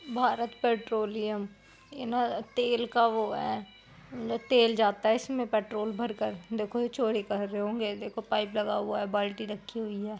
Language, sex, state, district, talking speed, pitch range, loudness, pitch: Hindi, female, Uttar Pradesh, Jyotiba Phule Nagar, 180 wpm, 210-235 Hz, -30 LUFS, 220 Hz